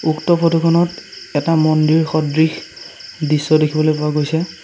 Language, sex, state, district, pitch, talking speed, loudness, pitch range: Assamese, male, Assam, Sonitpur, 155 Hz, 130 wpm, -16 LUFS, 155-165 Hz